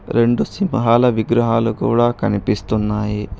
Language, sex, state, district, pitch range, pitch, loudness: Telugu, male, Telangana, Hyderabad, 105-120 Hz, 115 Hz, -17 LUFS